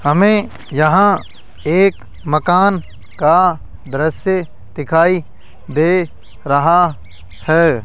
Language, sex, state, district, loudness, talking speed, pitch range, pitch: Hindi, male, Rajasthan, Jaipur, -15 LUFS, 75 wpm, 145-185 Hz, 160 Hz